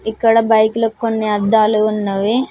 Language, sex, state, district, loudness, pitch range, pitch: Telugu, female, Telangana, Mahabubabad, -15 LUFS, 215-225 Hz, 220 Hz